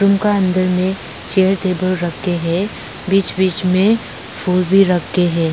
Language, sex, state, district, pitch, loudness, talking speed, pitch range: Hindi, female, Arunachal Pradesh, Lower Dibang Valley, 185 Hz, -16 LUFS, 150 wpm, 180-195 Hz